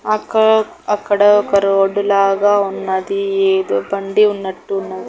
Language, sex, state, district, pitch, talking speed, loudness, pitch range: Telugu, female, Andhra Pradesh, Annamaya, 200 Hz, 105 wpm, -15 LUFS, 195-205 Hz